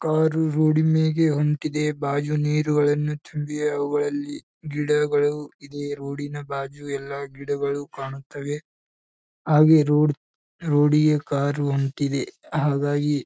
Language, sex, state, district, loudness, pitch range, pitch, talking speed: Kannada, male, Karnataka, Bijapur, -23 LUFS, 140-150 Hz, 145 Hz, 95 wpm